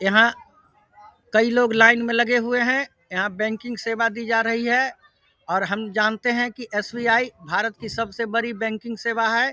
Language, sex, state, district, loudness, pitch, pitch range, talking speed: Hindi, male, Bihar, Vaishali, -21 LUFS, 230 Hz, 220-240 Hz, 175 wpm